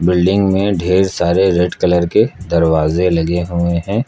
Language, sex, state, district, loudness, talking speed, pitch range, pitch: Hindi, male, Uttar Pradesh, Lucknow, -14 LUFS, 160 wpm, 85-95 Hz, 90 Hz